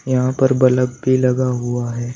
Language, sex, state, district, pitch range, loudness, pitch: Hindi, male, Uttar Pradesh, Shamli, 120-130 Hz, -17 LUFS, 125 Hz